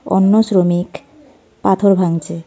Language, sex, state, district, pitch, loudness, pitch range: Bengali, female, West Bengal, Darjeeling, 190 Hz, -14 LUFS, 175-215 Hz